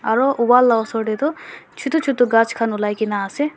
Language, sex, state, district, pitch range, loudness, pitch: Nagamese, female, Nagaland, Dimapur, 220-275 Hz, -18 LUFS, 230 Hz